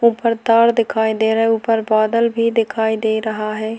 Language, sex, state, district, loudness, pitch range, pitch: Hindi, female, Uttarakhand, Tehri Garhwal, -17 LUFS, 220-230 Hz, 225 Hz